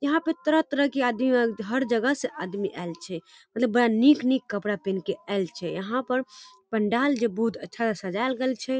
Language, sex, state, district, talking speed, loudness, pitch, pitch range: Hindi, female, Bihar, Darbhanga, 205 wpm, -26 LUFS, 240 Hz, 205-260 Hz